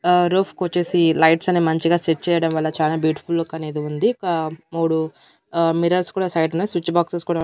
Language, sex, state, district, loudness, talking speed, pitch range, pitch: Telugu, female, Andhra Pradesh, Annamaya, -20 LUFS, 195 wpm, 160-175 Hz, 165 Hz